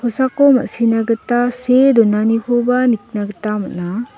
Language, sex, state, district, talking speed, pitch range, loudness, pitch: Garo, female, Meghalaya, West Garo Hills, 100 wpm, 220-250 Hz, -15 LUFS, 235 Hz